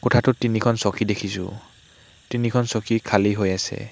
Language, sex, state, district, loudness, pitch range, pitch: Assamese, male, Assam, Hailakandi, -22 LUFS, 100-120 Hz, 110 Hz